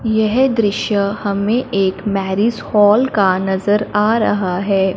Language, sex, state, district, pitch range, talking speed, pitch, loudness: Hindi, female, Punjab, Fazilka, 195-220 Hz, 135 wpm, 205 Hz, -16 LUFS